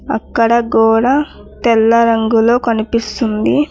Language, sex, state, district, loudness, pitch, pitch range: Telugu, female, Telangana, Mahabubabad, -13 LUFS, 230 Hz, 225-240 Hz